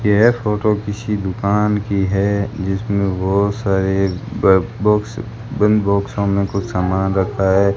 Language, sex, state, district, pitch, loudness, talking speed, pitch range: Hindi, male, Rajasthan, Bikaner, 100 Hz, -17 LUFS, 140 wpm, 95-105 Hz